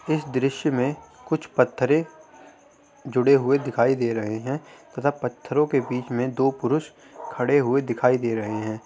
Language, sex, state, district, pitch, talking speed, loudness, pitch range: Hindi, male, Uttar Pradesh, Gorakhpur, 130 Hz, 160 wpm, -23 LUFS, 120-145 Hz